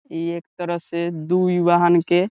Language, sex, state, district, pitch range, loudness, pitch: Bhojpuri, male, Bihar, Saran, 170-180 Hz, -20 LUFS, 175 Hz